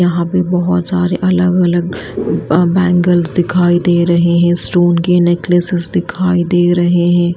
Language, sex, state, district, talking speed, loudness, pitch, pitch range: Hindi, female, Himachal Pradesh, Shimla, 140 wpm, -13 LUFS, 175 Hz, 175-180 Hz